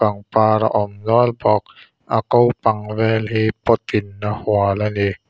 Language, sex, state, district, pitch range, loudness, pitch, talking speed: Mizo, male, Mizoram, Aizawl, 105-110 Hz, -18 LUFS, 105 Hz, 170 wpm